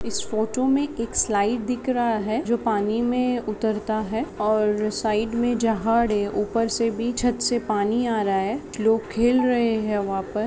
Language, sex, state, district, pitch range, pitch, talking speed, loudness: Marathi, female, Maharashtra, Pune, 215-240 Hz, 225 Hz, 190 wpm, -23 LUFS